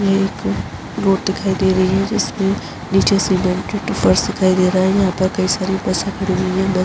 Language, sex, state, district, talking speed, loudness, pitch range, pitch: Hindi, female, Uttar Pradesh, Jalaun, 230 wpm, -17 LUFS, 185-195 Hz, 190 Hz